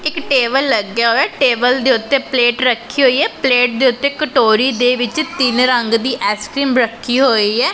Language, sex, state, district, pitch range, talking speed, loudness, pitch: Punjabi, female, Punjab, Pathankot, 235-270 Hz, 185 wpm, -14 LUFS, 250 Hz